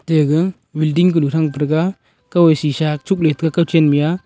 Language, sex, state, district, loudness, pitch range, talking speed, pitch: Wancho, male, Arunachal Pradesh, Longding, -16 LUFS, 150-170 Hz, 195 wpm, 160 Hz